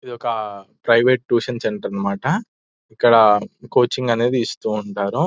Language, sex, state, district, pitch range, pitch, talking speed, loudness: Telugu, male, Telangana, Nalgonda, 105-125 Hz, 115 Hz, 135 wpm, -19 LUFS